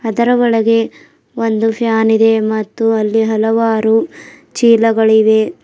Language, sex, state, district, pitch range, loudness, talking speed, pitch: Kannada, female, Karnataka, Bidar, 220-225 Hz, -13 LUFS, 95 wpm, 225 Hz